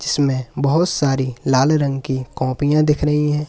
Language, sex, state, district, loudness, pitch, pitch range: Hindi, male, Uttar Pradesh, Lalitpur, -18 LUFS, 140 Hz, 130-150 Hz